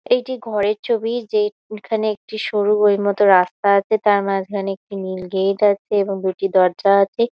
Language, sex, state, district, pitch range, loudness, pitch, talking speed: Bengali, female, West Bengal, Malda, 195-220 Hz, -18 LUFS, 205 Hz, 155 wpm